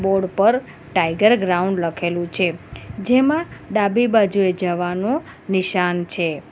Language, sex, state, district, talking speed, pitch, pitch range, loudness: Gujarati, female, Gujarat, Valsad, 110 wpm, 190 Hz, 175-215 Hz, -19 LUFS